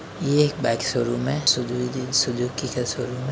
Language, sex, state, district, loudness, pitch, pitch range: Hindi, male, Uttar Pradesh, Varanasi, -23 LUFS, 125 Hz, 125-135 Hz